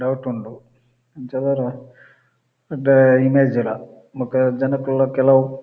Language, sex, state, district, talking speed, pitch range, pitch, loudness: Tulu, male, Karnataka, Dakshina Kannada, 85 wpm, 125-135 Hz, 130 Hz, -18 LUFS